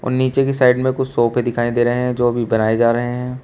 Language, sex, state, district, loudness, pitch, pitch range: Hindi, male, Uttar Pradesh, Shamli, -17 LUFS, 120 Hz, 120-130 Hz